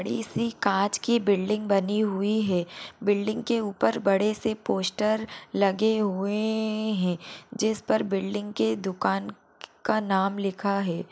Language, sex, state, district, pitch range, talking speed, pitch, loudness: Hindi, female, Bihar, Purnia, 195-215 Hz, 135 wpm, 205 Hz, -26 LUFS